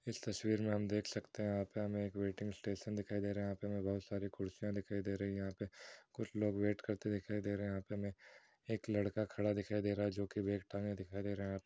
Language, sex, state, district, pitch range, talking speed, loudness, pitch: Hindi, male, Bihar, Kishanganj, 100-105 Hz, 300 wpm, -41 LUFS, 100 Hz